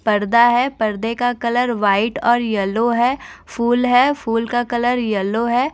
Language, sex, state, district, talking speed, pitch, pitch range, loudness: Hindi, female, Bihar, West Champaran, 165 wpm, 235 Hz, 225-245 Hz, -17 LUFS